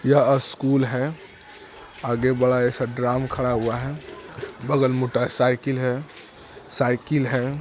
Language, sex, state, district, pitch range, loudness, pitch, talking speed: Hindi, male, Bihar, Jamui, 125-135 Hz, -23 LUFS, 130 Hz, 140 wpm